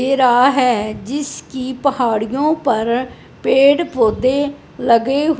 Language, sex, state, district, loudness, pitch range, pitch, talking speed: Hindi, male, Punjab, Fazilka, -16 LUFS, 240-280 Hz, 260 Hz, 110 wpm